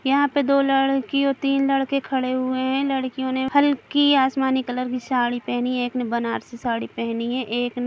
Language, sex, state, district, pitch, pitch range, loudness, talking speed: Hindi, female, Chhattisgarh, Kabirdham, 260 Hz, 245-275 Hz, -22 LUFS, 205 wpm